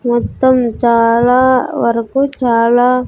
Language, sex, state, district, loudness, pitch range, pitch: Telugu, female, Andhra Pradesh, Sri Satya Sai, -12 LUFS, 235-255 Hz, 245 Hz